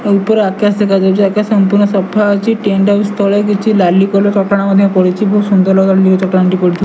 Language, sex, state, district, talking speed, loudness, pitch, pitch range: Odia, male, Odisha, Malkangiri, 210 wpm, -11 LUFS, 200 Hz, 190-205 Hz